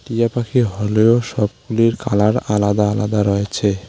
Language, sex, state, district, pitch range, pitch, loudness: Bengali, male, West Bengal, Alipurduar, 105-115 Hz, 105 Hz, -17 LUFS